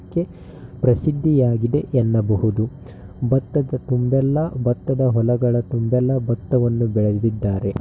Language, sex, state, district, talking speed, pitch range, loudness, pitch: Kannada, male, Karnataka, Shimoga, 75 wpm, 115-130 Hz, -20 LUFS, 125 Hz